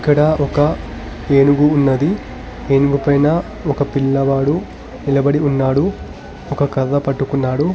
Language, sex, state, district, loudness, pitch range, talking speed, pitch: Telugu, male, Telangana, Hyderabad, -16 LUFS, 135-145 Hz, 95 wpm, 140 Hz